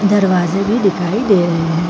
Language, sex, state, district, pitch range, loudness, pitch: Hindi, female, Chhattisgarh, Bilaspur, 175-205 Hz, -15 LUFS, 190 Hz